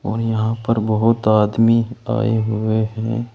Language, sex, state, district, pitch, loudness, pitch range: Hindi, male, Uttar Pradesh, Saharanpur, 110 Hz, -18 LUFS, 110-115 Hz